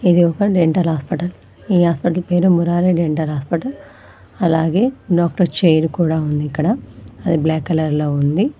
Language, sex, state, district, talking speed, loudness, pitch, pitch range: Telugu, female, Telangana, Mahabubabad, 145 wpm, -17 LUFS, 170 Hz, 160-180 Hz